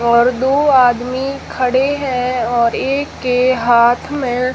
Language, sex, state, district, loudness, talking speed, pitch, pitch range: Hindi, female, Rajasthan, Jaisalmer, -15 LUFS, 130 wpm, 255 Hz, 245-265 Hz